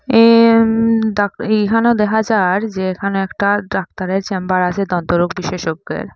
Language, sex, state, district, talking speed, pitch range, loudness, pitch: Bengali, female, Assam, Hailakandi, 135 wpm, 185-225 Hz, -15 LUFS, 200 Hz